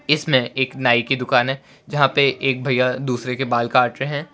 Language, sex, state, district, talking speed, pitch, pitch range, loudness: Hindi, male, Gujarat, Valsad, 205 wpm, 130 Hz, 125-135 Hz, -19 LUFS